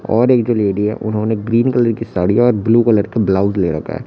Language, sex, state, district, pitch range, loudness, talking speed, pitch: Hindi, male, Chhattisgarh, Raipur, 100-120 Hz, -15 LUFS, 265 wpm, 110 Hz